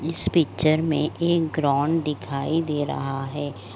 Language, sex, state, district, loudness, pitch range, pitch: Hindi, male, Uttar Pradesh, Etah, -23 LUFS, 140-160 Hz, 150 Hz